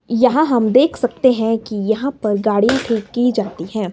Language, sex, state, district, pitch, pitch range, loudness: Hindi, male, Himachal Pradesh, Shimla, 230 Hz, 215-255 Hz, -17 LUFS